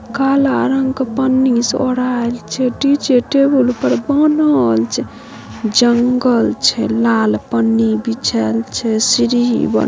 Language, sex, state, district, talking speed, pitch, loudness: Maithili, female, Bihar, Samastipur, 115 wpm, 245 Hz, -14 LUFS